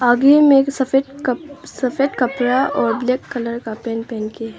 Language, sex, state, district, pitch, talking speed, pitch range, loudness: Hindi, female, Arunachal Pradesh, Longding, 255 Hz, 195 wpm, 235-275 Hz, -18 LUFS